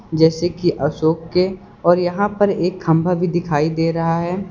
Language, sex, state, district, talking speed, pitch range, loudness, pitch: Hindi, male, Uttar Pradesh, Lucknow, 185 wpm, 160-180 Hz, -18 LUFS, 175 Hz